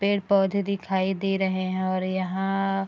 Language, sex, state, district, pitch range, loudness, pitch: Hindi, female, Bihar, Darbhanga, 185-195 Hz, -25 LUFS, 195 Hz